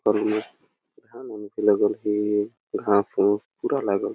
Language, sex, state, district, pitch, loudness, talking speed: Awadhi, male, Chhattisgarh, Balrampur, 105 Hz, -24 LUFS, 145 wpm